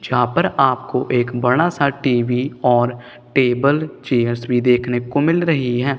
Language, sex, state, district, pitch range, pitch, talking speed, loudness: Hindi, male, Punjab, Kapurthala, 120-140 Hz, 125 Hz, 160 wpm, -18 LUFS